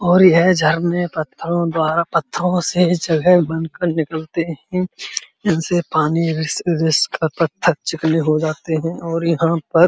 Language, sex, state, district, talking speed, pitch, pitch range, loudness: Hindi, male, Uttar Pradesh, Muzaffarnagar, 150 wpm, 165 Hz, 160-175 Hz, -18 LUFS